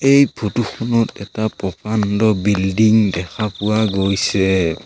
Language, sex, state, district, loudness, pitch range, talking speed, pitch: Assamese, male, Assam, Sonitpur, -17 LUFS, 95-110 Hz, 110 wpm, 105 Hz